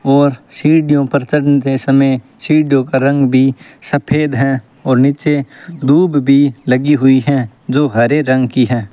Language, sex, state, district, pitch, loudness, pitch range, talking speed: Hindi, male, Rajasthan, Bikaner, 140 Hz, -13 LUFS, 130-145 Hz, 155 wpm